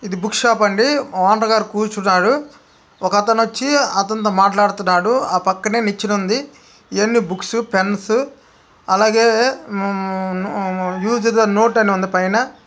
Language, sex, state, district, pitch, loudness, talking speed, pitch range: Telugu, male, Andhra Pradesh, Krishna, 215 Hz, -17 LUFS, 125 wpm, 195-230 Hz